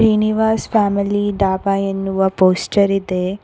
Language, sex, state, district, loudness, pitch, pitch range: Kannada, female, Karnataka, Koppal, -17 LUFS, 195 Hz, 190-205 Hz